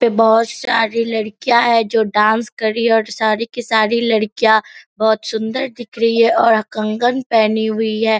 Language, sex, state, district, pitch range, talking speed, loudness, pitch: Hindi, female, Bihar, Purnia, 220-235 Hz, 175 wpm, -16 LUFS, 225 Hz